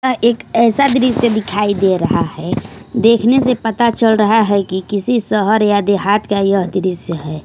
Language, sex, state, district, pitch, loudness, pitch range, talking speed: Hindi, male, Maharashtra, Washim, 215 Hz, -14 LUFS, 200-235 Hz, 185 wpm